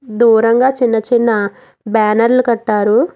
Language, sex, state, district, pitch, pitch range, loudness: Telugu, female, Telangana, Hyderabad, 230 Hz, 215-240 Hz, -13 LUFS